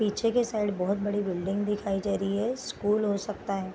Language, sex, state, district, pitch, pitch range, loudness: Hindi, female, Bihar, Gopalganj, 205 Hz, 195-210 Hz, -29 LUFS